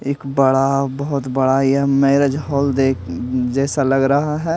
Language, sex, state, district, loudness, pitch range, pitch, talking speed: Hindi, male, Delhi, New Delhi, -17 LUFS, 135-140 Hz, 135 Hz, 155 wpm